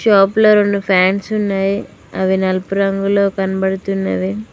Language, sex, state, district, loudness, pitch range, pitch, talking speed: Telugu, female, Telangana, Mahabubabad, -15 LUFS, 190-200 Hz, 195 Hz, 105 wpm